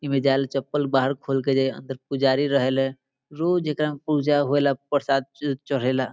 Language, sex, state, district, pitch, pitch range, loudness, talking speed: Bhojpuri, male, Bihar, Saran, 135 Hz, 135-145 Hz, -23 LUFS, 195 wpm